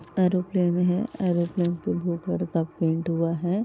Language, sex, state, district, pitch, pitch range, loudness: Hindi, female, Uttar Pradesh, Varanasi, 175 Hz, 170-185 Hz, -25 LUFS